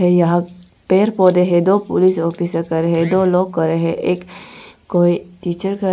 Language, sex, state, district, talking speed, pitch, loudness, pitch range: Hindi, female, Arunachal Pradesh, Lower Dibang Valley, 170 wpm, 180 Hz, -16 LUFS, 170-185 Hz